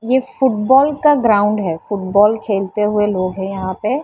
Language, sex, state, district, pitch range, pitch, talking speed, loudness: Hindi, female, Maharashtra, Mumbai Suburban, 195-255 Hz, 210 Hz, 195 wpm, -16 LUFS